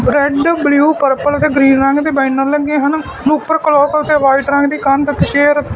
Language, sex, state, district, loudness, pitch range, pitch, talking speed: Punjabi, male, Punjab, Fazilka, -12 LUFS, 275-300 Hz, 290 Hz, 210 wpm